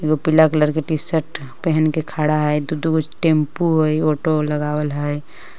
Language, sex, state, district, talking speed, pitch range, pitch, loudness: Magahi, female, Jharkhand, Palamu, 180 wpm, 150-160 Hz, 155 Hz, -19 LUFS